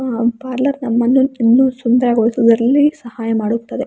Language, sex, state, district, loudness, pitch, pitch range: Kannada, female, Karnataka, Raichur, -15 LUFS, 245 Hz, 230-265 Hz